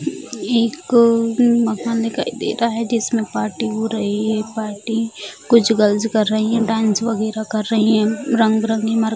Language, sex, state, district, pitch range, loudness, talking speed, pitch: Hindi, female, Bihar, Jamui, 215-230 Hz, -18 LUFS, 165 wpm, 225 Hz